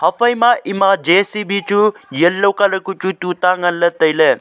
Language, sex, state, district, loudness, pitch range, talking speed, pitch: Wancho, male, Arunachal Pradesh, Longding, -15 LUFS, 175-200 Hz, 175 wpm, 195 Hz